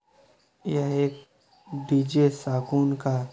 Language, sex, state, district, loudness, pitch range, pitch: Hindi, male, Uttar Pradesh, Budaun, -25 LUFS, 140-145 Hz, 140 Hz